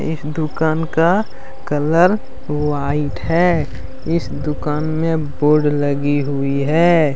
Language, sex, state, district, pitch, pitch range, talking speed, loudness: Hindi, male, Jharkhand, Deoghar, 150 Hz, 145-165 Hz, 100 wpm, -18 LUFS